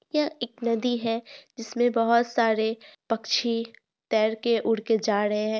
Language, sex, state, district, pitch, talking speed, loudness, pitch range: Hindi, female, Bihar, Purnia, 230 Hz, 160 wpm, -25 LUFS, 220-240 Hz